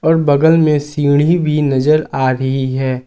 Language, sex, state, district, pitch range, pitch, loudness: Hindi, male, Jharkhand, Garhwa, 135-155 Hz, 145 Hz, -14 LUFS